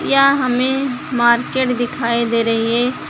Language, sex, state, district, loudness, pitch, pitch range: Hindi, female, Uttar Pradesh, Lucknow, -16 LUFS, 245 Hz, 235-260 Hz